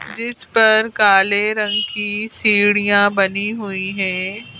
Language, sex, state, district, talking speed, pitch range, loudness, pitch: Hindi, female, Madhya Pradesh, Bhopal, 115 wpm, 195-215 Hz, -16 LUFS, 205 Hz